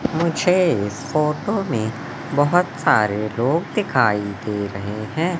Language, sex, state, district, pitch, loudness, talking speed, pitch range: Hindi, male, Madhya Pradesh, Katni, 145 Hz, -20 LUFS, 110 wpm, 105-170 Hz